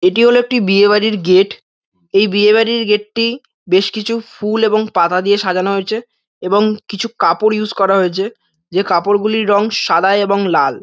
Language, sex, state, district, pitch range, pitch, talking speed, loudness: Bengali, male, West Bengal, North 24 Parganas, 195-220 Hz, 205 Hz, 170 wpm, -14 LUFS